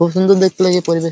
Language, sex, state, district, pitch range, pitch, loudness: Bengali, male, West Bengal, Paschim Medinipur, 170-190 Hz, 180 Hz, -13 LUFS